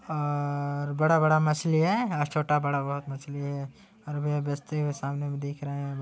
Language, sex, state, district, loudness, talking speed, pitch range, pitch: Hindi, male, Chhattisgarh, Kabirdham, -28 LUFS, 200 wpm, 140-155 Hz, 145 Hz